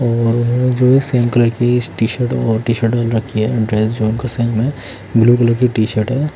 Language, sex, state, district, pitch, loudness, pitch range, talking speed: Hindi, male, Odisha, Khordha, 120 Hz, -15 LUFS, 110-125 Hz, 105 wpm